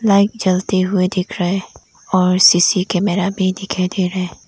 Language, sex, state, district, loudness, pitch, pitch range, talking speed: Hindi, female, Arunachal Pradesh, Lower Dibang Valley, -16 LUFS, 185 Hz, 180-195 Hz, 190 wpm